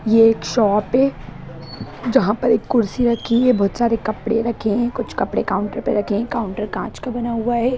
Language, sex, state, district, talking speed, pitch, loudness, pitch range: Hindi, female, Bihar, Jamui, 210 wpm, 230 Hz, -19 LUFS, 210-240 Hz